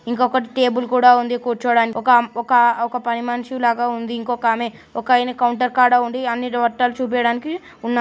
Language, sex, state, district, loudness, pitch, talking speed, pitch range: Telugu, female, Andhra Pradesh, Chittoor, -18 LUFS, 245 Hz, 170 wpm, 235-250 Hz